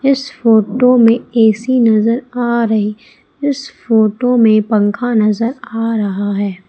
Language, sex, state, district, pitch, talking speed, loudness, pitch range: Hindi, female, Madhya Pradesh, Umaria, 230 Hz, 145 wpm, -13 LUFS, 215-245 Hz